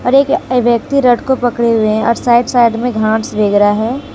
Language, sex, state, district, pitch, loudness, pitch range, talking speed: Hindi, female, Jharkhand, Deoghar, 235 Hz, -12 LUFS, 220-250 Hz, 215 wpm